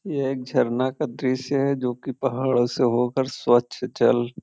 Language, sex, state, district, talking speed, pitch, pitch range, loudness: Hindi, male, Uttar Pradesh, Varanasi, 190 wpm, 130 Hz, 120-135 Hz, -23 LUFS